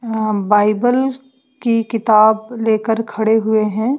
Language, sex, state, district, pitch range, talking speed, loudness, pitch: Hindi, female, Bihar, West Champaran, 215-240 Hz, 120 wpm, -16 LUFS, 225 Hz